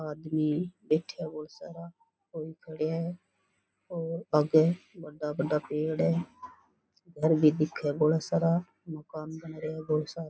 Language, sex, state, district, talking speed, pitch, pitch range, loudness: Rajasthani, female, Rajasthan, Churu, 145 wpm, 160 Hz, 155-170 Hz, -30 LUFS